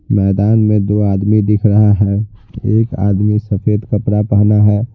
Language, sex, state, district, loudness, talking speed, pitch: Hindi, male, Bihar, Patna, -13 LUFS, 160 wpm, 105 Hz